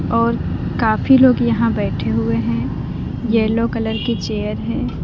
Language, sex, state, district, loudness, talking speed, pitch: Hindi, female, Uttar Pradesh, Lalitpur, -18 LUFS, 145 wpm, 220 Hz